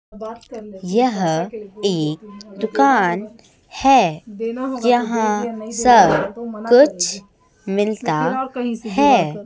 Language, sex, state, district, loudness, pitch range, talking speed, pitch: Hindi, female, Chhattisgarh, Raipur, -18 LUFS, 200-240 Hz, 55 wpm, 220 Hz